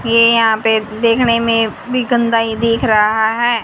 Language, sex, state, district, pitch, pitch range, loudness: Hindi, female, Haryana, Jhajjar, 230 Hz, 220-235 Hz, -14 LUFS